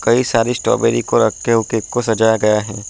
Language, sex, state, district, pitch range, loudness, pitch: Hindi, male, Uttar Pradesh, Budaun, 110-115 Hz, -16 LUFS, 110 Hz